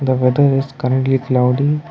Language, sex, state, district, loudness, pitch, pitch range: English, male, Karnataka, Bangalore, -16 LUFS, 135 Hz, 130-140 Hz